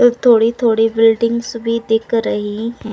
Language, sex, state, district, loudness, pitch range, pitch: Hindi, female, Uttar Pradesh, Budaun, -15 LUFS, 225-235 Hz, 230 Hz